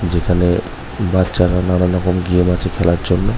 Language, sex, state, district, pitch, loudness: Bengali, male, West Bengal, North 24 Parganas, 90 Hz, -16 LUFS